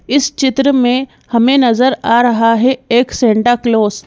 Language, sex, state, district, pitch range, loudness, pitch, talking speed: Hindi, female, Madhya Pradesh, Bhopal, 235-265 Hz, -12 LUFS, 245 Hz, 175 wpm